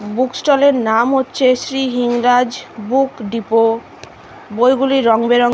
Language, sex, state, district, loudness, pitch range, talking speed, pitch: Bengali, female, West Bengal, Kolkata, -15 LUFS, 225-265 Hz, 120 wpm, 245 Hz